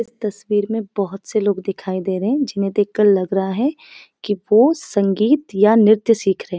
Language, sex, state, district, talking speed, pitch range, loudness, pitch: Hindi, female, Uttarakhand, Uttarkashi, 210 wpm, 195-225 Hz, -18 LUFS, 205 Hz